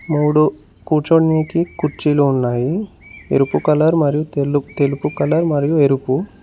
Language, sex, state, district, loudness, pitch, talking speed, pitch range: Telugu, male, Telangana, Mahabubabad, -17 LUFS, 150 Hz, 105 wpm, 140-160 Hz